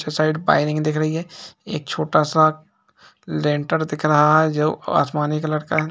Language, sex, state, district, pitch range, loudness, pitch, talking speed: Hindi, male, Bihar, East Champaran, 150-155 Hz, -20 LUFS, 155 Hz, 170 wpm